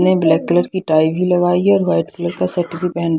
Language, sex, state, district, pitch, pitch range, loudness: Hindi, female, Haryana, Jhajjar, 175 Hz, 160-180 Hz, -16 LUFS